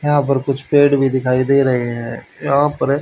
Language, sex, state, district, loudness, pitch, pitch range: Hindi, male, Haryana, Charkhi Dadri, -16 LUFS, 140 Hz, 130-145 Hz